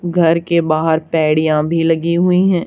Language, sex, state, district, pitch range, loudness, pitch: Hindi, female, Haryana, Charkhi Dadri, 160-170 Hz, -14 LUFS, 165 Hz